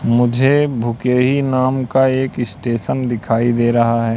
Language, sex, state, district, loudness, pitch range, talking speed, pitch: Hindi, male, Madhya Pradesh, Katni, -16 LUFS, 120-130 Hz, 145 wpm, 120 Hz